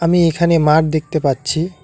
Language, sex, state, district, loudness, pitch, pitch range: Bengali, male, West Bengal, Alipurduar, -15 LUFS, 160 Hz, 155-170 Hz